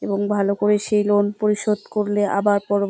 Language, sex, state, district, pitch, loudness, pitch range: Bengali, female, West Bengal, Jalpaiguri, 205 Hz, -20 LUFS, 200-210 Hz